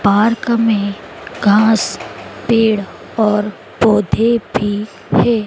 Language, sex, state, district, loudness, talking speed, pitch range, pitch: Hindi, female, Madhya Pradesh, Dhar, -15 LUFS, 90 wpm, 205-225 Hz, 215 Hz